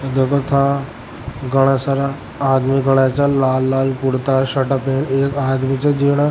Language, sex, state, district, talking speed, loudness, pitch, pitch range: Rajasthani, male, Rajasthan, Churu, 160 wpm, -17 LUFS, 135 Hz, 135-140 Hz